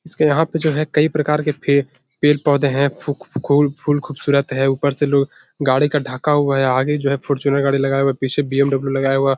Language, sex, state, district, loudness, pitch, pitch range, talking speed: Hindi, male, Bihar, Jahanabad, -18 LUFS, 140 Hz, 135-150 Hz, 245 wpm